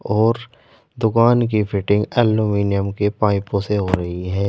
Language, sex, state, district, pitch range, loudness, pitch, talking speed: Hindi, male, Uttar Pradesh, Saharanpur, 100-110 Hz, -19 LUFS, 105 Hz, 145 wpm